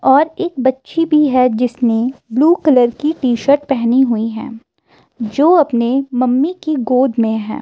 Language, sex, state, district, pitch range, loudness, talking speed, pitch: Hindi, female, Himachal Pradesh, Shimla, 240-295 Hz, -14 LUFS, 155 wpm, 260 Hz